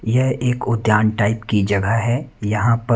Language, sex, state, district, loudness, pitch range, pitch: Hindi, male, Punjab, Kapurthala, -19 LUFS, 105-120 Hz, 115 Hz